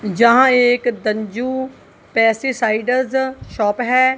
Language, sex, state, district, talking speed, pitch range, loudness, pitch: Hindi, female, Punjab, Kapurthala, 85 wpm, 220-260 Hz, -16 LUFS, 245 Hz